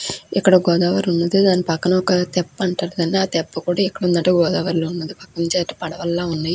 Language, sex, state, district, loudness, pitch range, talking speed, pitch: Telugu, female, Andhra Pradesh, Krishna, -19 LUFS, 170-185 Hz, 135 wpm, 175 Hz